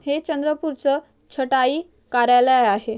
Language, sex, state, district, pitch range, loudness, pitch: Marathi, male, Maharashtra, Chandrapur, 250-300 Hz, -20 LUFS, 275 Hz